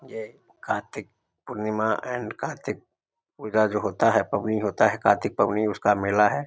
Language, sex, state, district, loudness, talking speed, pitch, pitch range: Maithili, male, Bihar, Samastipur, -24 LUFS, 165 wpm, 110 Hz, 105-125 Hz